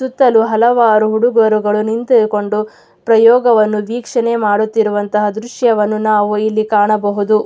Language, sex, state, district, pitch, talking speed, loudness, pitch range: Kannada, female, Karnataka, Mysore, 215 Hz, 80 wpm, -13 LUFS, 210-230 Hz